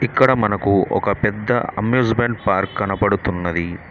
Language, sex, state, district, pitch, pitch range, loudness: Telugu, male, Telangana, Mahabubabad, 105 Hz, 100-120 Hz, -19 LUFS